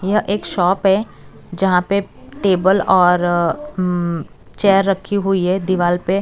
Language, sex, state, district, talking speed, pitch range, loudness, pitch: Hindi, female, Chhattisgarh, Raipur, 155 wpm, 175-195 Hz, -17 LUFS, 190 Hz